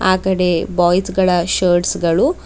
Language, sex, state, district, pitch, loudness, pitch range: Kannada, female, Karnataka, Bidar, 180 Hz, -15 LUFS, 175-185 Hz